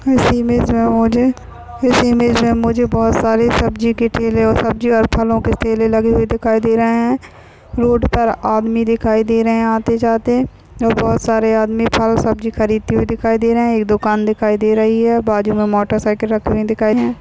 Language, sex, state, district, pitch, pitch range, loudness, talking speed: Hindi, female, Maharashtra, Chandrapur, 225 Hz, 220-235 Hz, -15 LUFS, 180 wpm